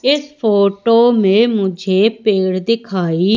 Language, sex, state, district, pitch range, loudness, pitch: Hindi, female, Madhya Pradesh, Umaria, 190-230 Hz, -14 LUFS, 210 Hz